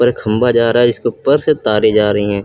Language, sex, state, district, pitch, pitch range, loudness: Hindi, male, Uttar Pradesh, Lucknow, 120 Hz, 105-125 Hz, -13 LUFS